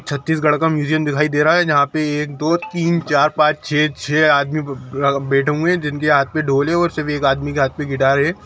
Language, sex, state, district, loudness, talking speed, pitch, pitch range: Hindi, male, Chhattisgarh, Sukma, -17 LUFS, 240 wpm, 150 Hz, 140-155 Hz